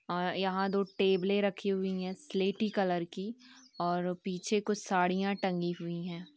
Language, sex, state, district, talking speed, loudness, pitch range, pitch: Hindi, female, Bihar, Jamui, 170 wpm, -33 LUFS, 180-200 Hz, 190 Hz